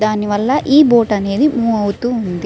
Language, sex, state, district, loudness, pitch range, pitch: Telugu, female, Andhra Pradesh, Srikakulam, -14 LUFS, 205-245 Hz, 220 Hz